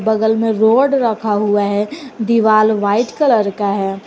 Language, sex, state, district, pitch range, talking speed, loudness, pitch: Hindi, female, Jharkhand, Garhwa, 205-230 Hz, 160 wpm, -15 LUFS, 220 Hz